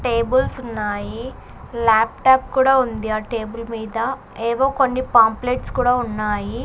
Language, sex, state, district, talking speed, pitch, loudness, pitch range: Telugu, female, Andhra Pradesh, Sri Satya Sai, 115 wpm, 230 Hz, -19 LUFS, 220-255 Hz